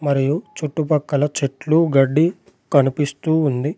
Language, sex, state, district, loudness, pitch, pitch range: Telugu, male, Telangana, Adilabad, -19 LUFS, 150 Hz, 140-160 Hz